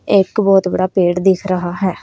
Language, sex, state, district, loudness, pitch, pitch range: Hindi, female, Haryana, Rohtak, -15 LUFS, 190 Hz, 185-195 Hz